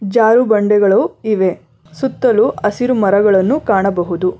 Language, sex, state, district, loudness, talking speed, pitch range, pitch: Kannada, female, Karnataka, Bangalore, -14 LUFS, 95 wpm, 190-230 Hz, 205 Hz